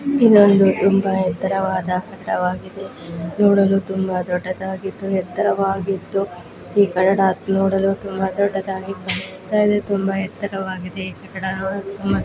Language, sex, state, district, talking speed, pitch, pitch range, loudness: Kannada, female, Karnataka, Bijapur, 90 wpm, 195 Hz, 190-195 Hz, -19 LUFS